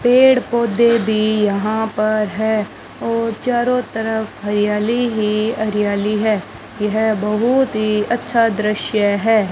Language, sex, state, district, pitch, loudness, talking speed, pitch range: Hindi, male, Rajasthan, Bikaner, 220 Hz, -17 LUFS, 120 wpm, 210-230 Hz